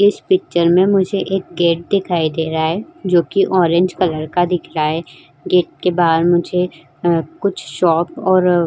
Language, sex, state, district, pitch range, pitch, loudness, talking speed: Hindi, female, Uttar Pradesh, Jyotiba Phule Nagar, 165-185 Hz, 175 Hz, -16 LUFS, 180 wpm